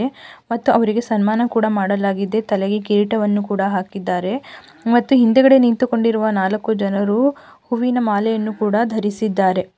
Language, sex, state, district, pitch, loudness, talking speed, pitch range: Kannada, female, Karnataka, Gulbarga, 220 Hz, -18 LUFS, 115 wpm, 205-240 Hz